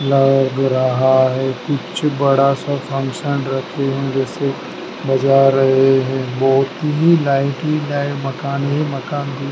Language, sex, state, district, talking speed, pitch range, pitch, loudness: Hindi, male, Madhya Pradesh, Dhar, 145 wpm, 135-140 Hz, 135 Hz, -17 LUFS